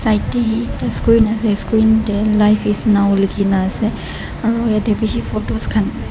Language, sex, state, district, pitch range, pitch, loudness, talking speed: Nagamese, male, Nagaland, Dimapur, 200-220 Hz, 215 Hz, -16 LUFS, 165 wpm